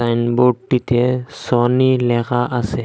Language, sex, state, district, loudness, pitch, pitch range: Bengali, male, Assam, Hailakandi, -17 LUFS, 120 Hz, 120-125 Hz